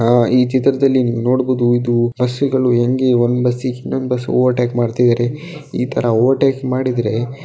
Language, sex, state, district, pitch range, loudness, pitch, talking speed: Kannada, male, Karnataka, Dakshina Kannada, 120-130 Hz, -16 LUFS, 125 Hz, 145 wpm